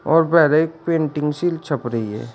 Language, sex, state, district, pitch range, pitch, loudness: Hindi, male, Uttar Pradesh, Shamli, 145-165 Hz, 155 Hz, -19 LUFS